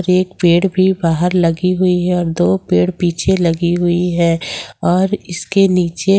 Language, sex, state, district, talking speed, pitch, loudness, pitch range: Hindi, female, Jharkhand, Ranchi, 165 wpm, 175 Hz, -15 LUFS, 170-185 Hz